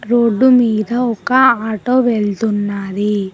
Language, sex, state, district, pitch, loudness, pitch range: Telugu, female, Telangana, Mahabubabad, 220 Hz, -14 LUFS, 210-245 Hz